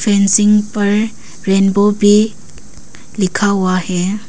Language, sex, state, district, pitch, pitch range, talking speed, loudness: Hindi, female, Arunachal Pradesh, Papum Pare, 205 Hz, 195-210 Hz, 100 wpm, -13 LUFS